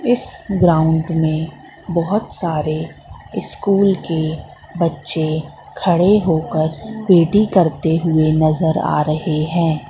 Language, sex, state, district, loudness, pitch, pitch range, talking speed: Hindi, female, Madhya Pradesh, Katni, -17 LUFS, 165 Hz, 155-180 Hz, 105 wpm